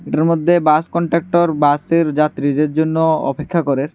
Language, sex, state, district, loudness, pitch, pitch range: Bengali, male, Tripura, West Tripura, -16 LUFS, 160 Hz, 150-165 Hz